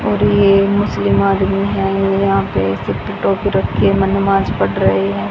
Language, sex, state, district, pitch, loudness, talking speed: Hindi, female, Haryana, Jhajjar, 195 Hz, -15 LUFS, 170 wpm